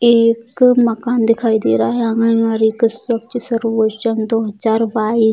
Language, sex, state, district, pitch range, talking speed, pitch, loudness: Hindi, female, Bihar, Sitamarhi, 220-235 Hz, 145 wpm, 230 Hz, -15 LUFS